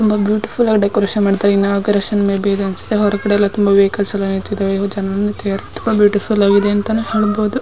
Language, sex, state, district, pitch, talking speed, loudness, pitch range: Kannada, female, Karnataka, Dharwad, 205 Hz, 120 wpm, -15 LUFS, 200-210 Hz